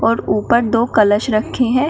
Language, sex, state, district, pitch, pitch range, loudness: Hindi, female, Uttar Pradesh, Shamli, 230 Hz, 215-240 Hz, -15 LUFS